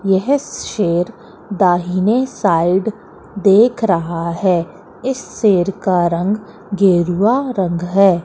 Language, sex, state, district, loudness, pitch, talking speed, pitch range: Hindi, female, Madhya Pradesh, Katni, -16 LUFS, 195 Hz, 100 wpm, 175-215 Hz